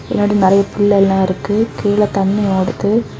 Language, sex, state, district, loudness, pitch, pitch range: Tamil, female, Tamil Nadu, Kanyakumari, -14 LUFS, 200 Hz, 195-205 Hz